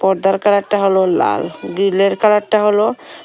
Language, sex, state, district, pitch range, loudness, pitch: Bengali, female, Tripura, Unakoti, 195-210 Hz, -15 LUFS, 200 Hz